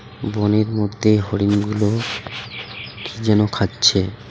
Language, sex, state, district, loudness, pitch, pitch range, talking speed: Bengali, male, West Bengal, Alipurduar, -19 LUFS, 105 Hz, 105-110 Hz, 95 wpm